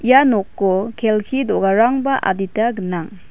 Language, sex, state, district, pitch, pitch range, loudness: Garo, female, Meghalaya, West Garo Hills, 215 Hz, 195-245 Hz, -17 LUFS